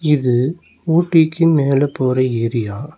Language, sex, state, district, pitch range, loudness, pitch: Tamil, male, Tamil Nadu, Nilgiris, 125-160 Hz, -16 LUFS, 140 Hz